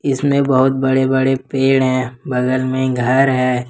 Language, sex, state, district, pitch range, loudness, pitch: Hindi, male, Jharkhand, Ranchi, 130-135 Hz, -16 LUFS, 130 Hz